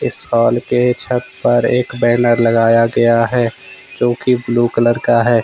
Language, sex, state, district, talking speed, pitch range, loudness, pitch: Hindi, male, Jharkhand, Ranchi, 175 wpm, 115-125 Hz, -14 LUFS, 120 Hz